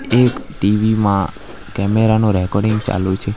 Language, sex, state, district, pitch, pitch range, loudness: Gujarati, male, Gujarat, Valsad, 105 Hz, 100-110 Hz, -16 LUFS